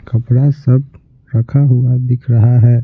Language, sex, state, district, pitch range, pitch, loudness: Hindi, male, Bihar, Patna, 120-130 Hz, 125 Hz, -12 LUFS